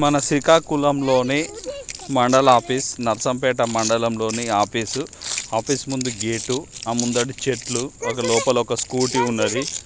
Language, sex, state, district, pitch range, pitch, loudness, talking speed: Telugu, male, Andhra Pradesh, Srikakulam, 115-135 Hz, 125 Hz, -20 LUFS, 130 wpm